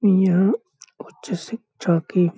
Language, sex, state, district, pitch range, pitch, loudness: Hindi, male, Bihar, Saharsa, 175-200 Hz, 185 Hz, -21 LUFS